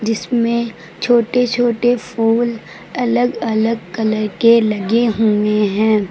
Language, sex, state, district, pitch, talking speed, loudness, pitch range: Hindi, female, Uttar Pradesh, Lucknow, 230 Hz, 110 wpm, -16 LUFS, 215-240 Hz